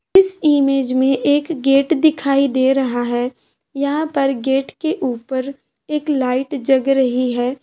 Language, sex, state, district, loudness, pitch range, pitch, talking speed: Hindi, female, Bihar, Bhagalpur, -17 LUFS, 260-290 Hz, 275 Hz, 150 wpm